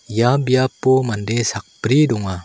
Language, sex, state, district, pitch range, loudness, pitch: Garo, male, Meghalaya, South Garo Hills, 110-130 Hz, -18 LUFS, 120 Hz